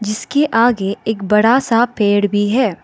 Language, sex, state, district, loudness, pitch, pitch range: Hindi, female, Arunachal Pradesh, Lower Dibang Valley, -15 LUFS, 220 Hz, 205-245 Hz